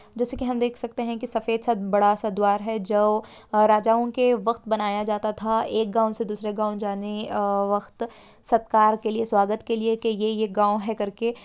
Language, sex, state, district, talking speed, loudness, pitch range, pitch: Hindi, female, Bihar, Sitamarhi, 215 wpm, -24 LUFS, 210-230 Hz, 220 Hz